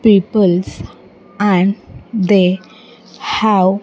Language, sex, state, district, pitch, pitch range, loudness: English, female, Andhra Pradesh, Sri Satya Sai, 200 Hz, 185-220 Hz, -14 LUFS